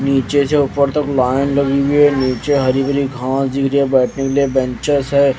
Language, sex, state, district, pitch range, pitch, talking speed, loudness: Hindi, male, Bihar, West Champaran, 135-140 Hz, 140 Hz, 225 wpm, -15 LUFS